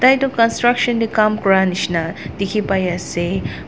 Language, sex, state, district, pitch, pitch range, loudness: Nagamese, female, Nagaland, Dimapur, 200 Hz, 180-230 Hz, -17 LUFS